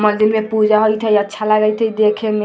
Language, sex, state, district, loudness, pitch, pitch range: Hindi, female, Bihar, Vaishali, -15 LUFS, 215 Hz, 210-220 Hz